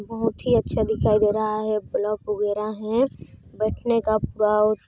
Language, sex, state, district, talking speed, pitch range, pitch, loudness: Hindi, female, Chhattisgarh, Sarguja, 135 wpm, 210-225 Hz, 215 Hz, -23 LUFS